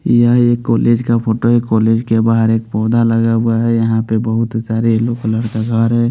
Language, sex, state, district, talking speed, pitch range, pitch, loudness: Hindi, male, Haryana, Rohtak, 225 wpm, 110-115 Hz, 115 Hz, -14 LUFS